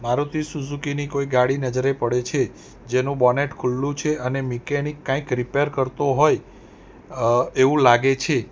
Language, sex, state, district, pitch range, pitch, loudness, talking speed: Gujarati, male, Gujarat, Valsad, 125-145 Hz, 135 Hz, -21 LUFS, 150 wpm